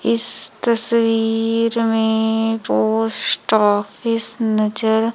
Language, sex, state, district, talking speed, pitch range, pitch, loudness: Hindi, female, Madhya Pradesh, Umaria, 70 wpm, 220-230 Hz, 225 Hz, -18 LUFS